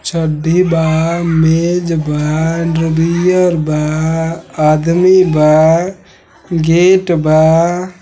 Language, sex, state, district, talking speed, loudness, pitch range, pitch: Bhojpuri, male, Uttar Pradesh, Deoria, 75 wpm, -12 LUFS, 160-175 Hz, 165 Hz